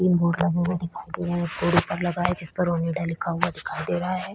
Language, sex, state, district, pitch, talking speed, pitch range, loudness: Hindi, female, Chhattisgarh, Korba, 175 Hz, 290 wpm, 170-180 Hz, -25 LUFS